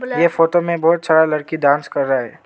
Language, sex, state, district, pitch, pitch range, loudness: Hindi, male, Arunachal Pradesh, Lower Dibang Valley, 160 Hz, 150-170 Hz, -16 LUFS